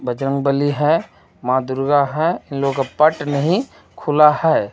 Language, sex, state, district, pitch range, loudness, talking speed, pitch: Hindi, male, Jharkhand, Ranchi, 135-150 Hz, -17 LUFS, 150 wpm, 145 Hz